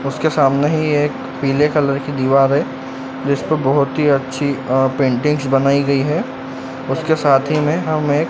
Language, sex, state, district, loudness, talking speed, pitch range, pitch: Hindi, male, Madhya Pradesh, Dhar, -17 LUFS, 175 wpm, 135-150 Hz, 140 Hz